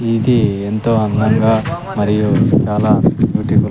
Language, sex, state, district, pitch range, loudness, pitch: Telugu, male, Andhra Pradesh, Sri Satya Sai, 105-115 Hz, -14 LUFS, 110 Hz